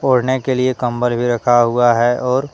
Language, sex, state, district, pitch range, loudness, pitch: Hindi, male, Jharkhand, Deoghar, 120-130 Hz, -15 LUFS, 125 Hz